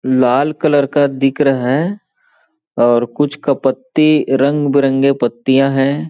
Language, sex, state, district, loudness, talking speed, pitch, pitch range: Hindi, male, Chhattisgarh, Balrampur, -14 LUFS, 130 wpm, 140 Hz, 130-145 Hz